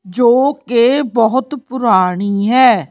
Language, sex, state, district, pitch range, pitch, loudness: Punjabi, female, Chandigarh, Chandigarh, 205-260 Hz, 240 Hz, -13 LUFS